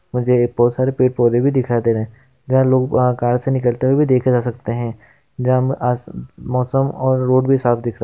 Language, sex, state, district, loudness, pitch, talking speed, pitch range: Hindi, male, West Bengal, Dakshin Dinajpur, -17 LUFS, 125 Hz, 195 wpm, 120-130 Hz